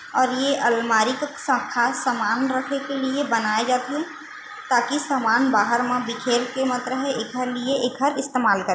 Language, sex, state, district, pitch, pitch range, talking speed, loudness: Chhattisgarhi, female, Chhattisgarh, Bilaspur, 255 Hz, 240-275 Hz, 170 wpm, -22 LUFS